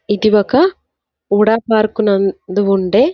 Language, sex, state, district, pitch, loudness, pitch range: Telugu, female, Andhra Pradesh, Visakhapatnam, 210 Hz, -14 LUFS, 200-220 Hz